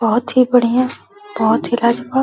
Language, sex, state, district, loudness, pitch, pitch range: Hindi, female, Uttar Pradesh, Deoria, -16 LUFS, 245 Hz, 235-255 Hz